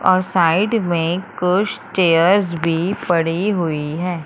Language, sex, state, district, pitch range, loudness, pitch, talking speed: Hindi, female, Madhya Pradesh, Umaria, 165-190 Hz, -18 LUFS, 175 Hz, 125 wpm